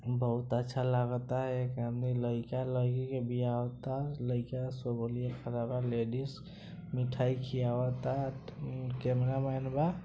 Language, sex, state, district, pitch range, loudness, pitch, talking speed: Bhojpuri, male, Bihar, East Champaran, 125-130 Hz, -35 LUFS, 125 Hz, 85 wpm